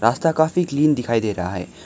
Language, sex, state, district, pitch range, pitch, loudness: Hindi, male, Arunachal Pradesh, Lower Dibang Valley, 95-160 Hz, 115 Hz, -20 LUFS